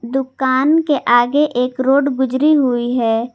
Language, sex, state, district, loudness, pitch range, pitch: Hindi, female, Jharkhand, Garhwa, -15 LUFS, 245-285 Hz, 260 Hz